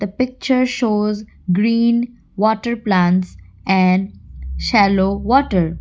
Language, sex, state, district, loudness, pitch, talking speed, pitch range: English, female, Assam, Kamrup Metropolitan, -17 LUFS, 205 Hz, 80 wpm, 185-235 Hz